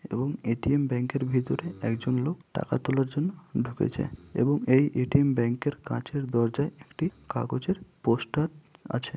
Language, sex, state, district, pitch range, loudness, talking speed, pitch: Bengali, male, West Bengal, Malda, 125-150 Hz, -28 LUFS, 145 wpm, 135 Hz